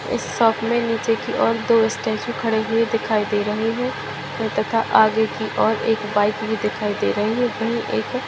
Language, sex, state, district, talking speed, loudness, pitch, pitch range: Hindi, female, Bihar, Saharsa, 205 wpm, -20 LUFS, 225 Hz, 215-230 Hz